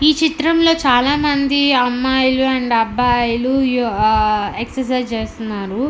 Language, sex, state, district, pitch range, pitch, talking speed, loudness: Telugu, female, Andhra Pradesh, Anantapur, 230-280 Hz, 255 Hz, 110 wpm, -16 LUFS